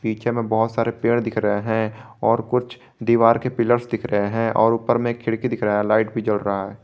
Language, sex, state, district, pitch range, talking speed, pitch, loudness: Hindi, male, Jharkhand, Garhwa, 110-120 Hz, 255 wpm, 115 Hz, -21 LUFS